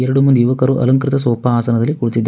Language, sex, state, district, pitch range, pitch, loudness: Kannada, male, Karnataka, Bangalore, 120-135 Hz, 125 Hz, -14 LUFS